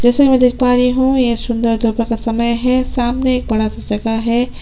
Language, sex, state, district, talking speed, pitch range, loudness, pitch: Hindi, female, Chhattisgarh, Sukma, 245 wpm, 230-250 Hz, -15 LUFS, 240 Hz